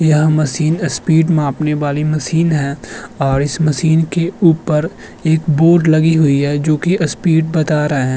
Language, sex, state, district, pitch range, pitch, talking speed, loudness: Hindi, male, Uttar Pradesh, Budaun, 150-160 Hz, 155 Hz, 170 wpm, -14 LUFS